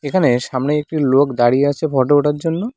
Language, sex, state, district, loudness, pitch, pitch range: Bengali, male, West Bengal, Cooch Behar, -16 LUFS, 145 Hz, 130-155 Hz